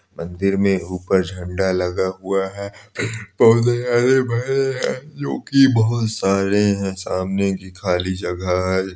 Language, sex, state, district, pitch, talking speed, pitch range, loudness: Hindi, male, Chhattisgarh, Balrampur, 95 Hz, 135 wpm, 95-115 Hz, -19 LUFS